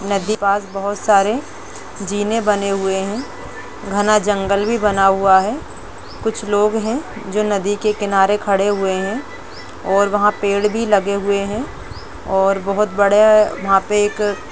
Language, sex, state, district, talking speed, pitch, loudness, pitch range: Hindi, female, Uttar Pradesh, Jalaun, 155 wpm, 205 Hz, -17 LUFS, 195-210 Hz